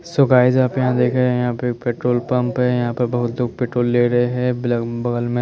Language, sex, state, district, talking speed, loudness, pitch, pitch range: Hindi, male, Chandigarh, Chandigarh, 220 wpm, -18 LUFS, 125 Hz, 120-125 Hz